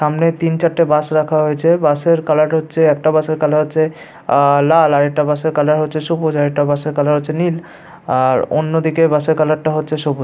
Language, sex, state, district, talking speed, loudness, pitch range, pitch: Bengali, male, West Bengal, Paschim Medinipur, 230 wpm, -15 LUFS, 150-160 Hz, 155 Hz